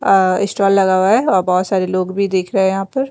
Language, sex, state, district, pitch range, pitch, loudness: Hindi, female, Bihar, Patna, 185-195 Hz, 190 Hz, -15 LUFS